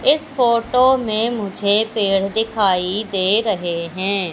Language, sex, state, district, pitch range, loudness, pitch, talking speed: Hindi, female, Madhya Pradesh, Katni, 195-230 Hz, -18 LUFS, 210 Hz, 125 wpm